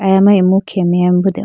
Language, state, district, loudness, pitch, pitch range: Idu Mishmi, Arunachal Pradesh, Lower Dibang Valley, -12 LUFS, 190 Hz, 180-195 Hz